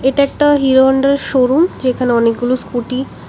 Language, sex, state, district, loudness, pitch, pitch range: Bengali, female, Tripura, West Tripura, -13 LUFS, 260 Hz, 250-275 Hz